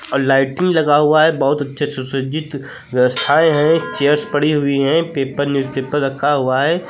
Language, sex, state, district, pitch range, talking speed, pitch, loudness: Hindi, male, Uttar Pradesh, Lucknow, 135-150 Hz, 155 wpm, 145 Hz, -16 LUFS